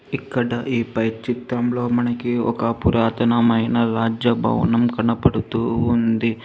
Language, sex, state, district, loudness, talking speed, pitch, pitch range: Telugu, female, Telangana, Hyderabad, -20 LUFS, 100 wpm, 115 Hz, 115-120 Hz